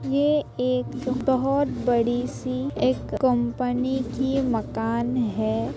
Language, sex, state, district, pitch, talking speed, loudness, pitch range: Hindi, female, Uttar Pradesh, Jalaun, 250 Hz, 105 wpm, -24 LUFS, 220-260 Hz